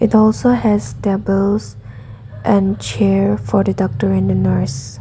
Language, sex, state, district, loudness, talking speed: English, female, Nagaland, Dimapur, -16 LUFS, 145 wpm